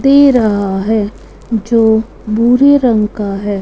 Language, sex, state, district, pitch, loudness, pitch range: Hindi, female, Punjab, Fazilka, 220 Hz, -12 LUFS, 205-245 Hz